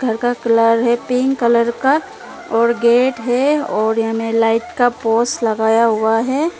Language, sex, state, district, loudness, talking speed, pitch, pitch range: Hindi, female, Arunachal Pradesh, Lower Dibang Valley, -16 LUFS, 155 wpm, 235 Hz, 225-250 Hz